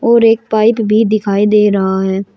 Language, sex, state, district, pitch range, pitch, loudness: Hindi, female, Uttar Pradesh, Shamli, 200-225 Hz, 215 Hz, -12 LUFS